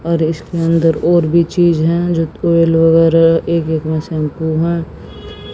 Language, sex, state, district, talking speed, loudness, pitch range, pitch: Hindi, female, Haryana, Jhajjar, 150 wpm, -14 LUFS, 160-170 Hz, 165 Hz